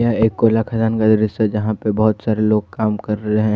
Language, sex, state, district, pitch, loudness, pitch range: Hindi, male, Jharkhand, Ranchi, 110 Hz, -17 LUFS, 105-110 Hz